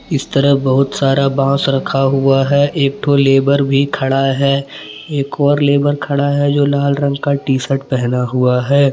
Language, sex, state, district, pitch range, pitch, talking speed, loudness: Hindi, male, Jharkhand, Palamu, 135-140 Hz, 140 Hz, 190 wpm, -14 LUFS